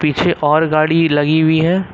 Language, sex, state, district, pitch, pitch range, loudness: Hindi, male, Uttar Pradesh, Lucknow, 160 Hz, 150-165 Hz, -14 LUFS